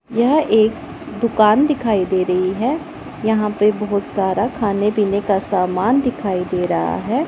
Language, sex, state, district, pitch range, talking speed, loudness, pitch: Hindi, female, Punjab, Pathankot, 195-235 Hz, 155 wpm, -18 LUFS, 210 Hz